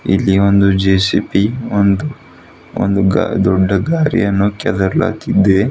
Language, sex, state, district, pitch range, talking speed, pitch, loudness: Kannada, female, Karnataka, Bidar, 95-100 Hz, 95 wpm, 100 Hz, -14 LUFS